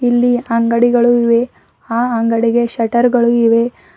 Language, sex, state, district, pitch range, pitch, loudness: Kannada, female, Karnataka, Bidar, 230-240 Hz, 235 Hz, -14 LUFS